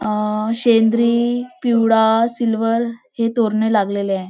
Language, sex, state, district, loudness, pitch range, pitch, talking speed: Marathi, female, Maharashtra, Nagpur, -17 LUFS, 215-235 Hz, 230 Hz, 110 wpm